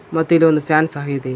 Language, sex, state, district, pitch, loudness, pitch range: Kannada, male, Karnataka, Koppal, 155 Hz, -16 LUFS, 145-160 Hz